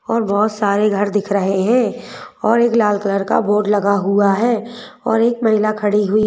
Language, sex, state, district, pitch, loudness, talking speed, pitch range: Hindi, female, Madhya Pradesh, Bhopal, 210 Hz, -16 LUFS, 190 wpm, 205-230 Hz